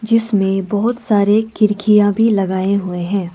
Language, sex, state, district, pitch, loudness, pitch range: Hindi, female, Arunachal Pradesh, Lower Dibang Valley, 205 Hz, -15 LUFS, 195-220 Hz